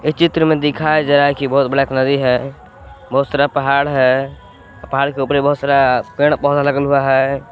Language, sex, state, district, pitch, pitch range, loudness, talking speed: Hindi, male, Jharkhand, Palamu, 140 Hz, 135-145 Hz, -15 LUFS, 200 wpm